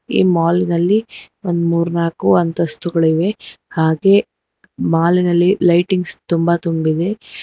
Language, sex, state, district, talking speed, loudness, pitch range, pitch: Kannada, female, Karnataka, Bangalore, 105 wpm, -16 LUFS, 165-180 Hz, 170 Hz